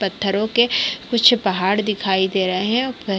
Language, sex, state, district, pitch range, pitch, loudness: Hindi, female, Chhattisgarh, Bilaspur, 190-235 Hz, 205 Hz, -18 LUFS